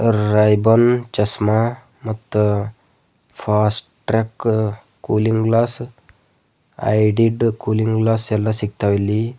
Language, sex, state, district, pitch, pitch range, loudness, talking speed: Kannada, male, Karnataka, Bidar, 110 Hz, 105-115 Hz, -18 LUFS, 75 wpm